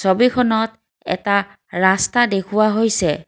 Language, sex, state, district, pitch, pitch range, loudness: Assamese, female, Assam, Kamrup Metropolitan, 210 Hz, 190-225 Hz, -17 LUFS